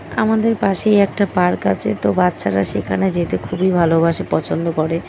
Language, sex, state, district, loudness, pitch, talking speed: Bengali, female, West Bengal, North 24 Parganas, -17 LUFS, 170 Hz, 155 wpm